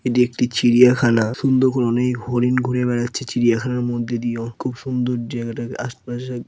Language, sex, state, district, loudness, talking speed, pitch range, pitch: Bengali, female, West Bengal, Purulia, -20 LUFS, 175 wpm, 120-125 Hz, 125 Hz